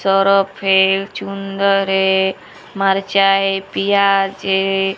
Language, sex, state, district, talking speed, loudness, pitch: Hindi, female, Bihar, West Champaran, 35 wpm, -16 LUFS, 195 Hz